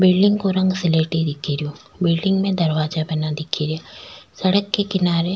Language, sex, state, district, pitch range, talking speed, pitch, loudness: Rajasthani, female, Rajasthan, Nagaur, 155-190 Hz, 180 wpm, 170 Hz, -20 LUFS